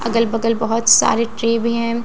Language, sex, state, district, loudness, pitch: Hindi, female, Bihar, Katihar, -16 LUFS, 230 Hz